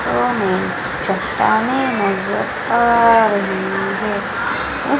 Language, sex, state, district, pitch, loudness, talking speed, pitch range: Hindi, female, Madhya Pradesh, Umaria, 225 Hz, -17 LUFS, 70 wpm, 200-235 Hz